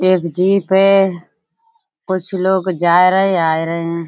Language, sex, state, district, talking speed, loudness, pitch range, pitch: Hindi, female, Uttar Pradesh, Budaun, 175 wpm, -14 LUFS, 170-195 Hz, 185 Hz